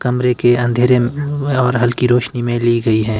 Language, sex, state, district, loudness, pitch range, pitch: Hindi, male, Himachal Pradesh, Shimla, -15 LUFS, 120-125 Hz, 120 Hz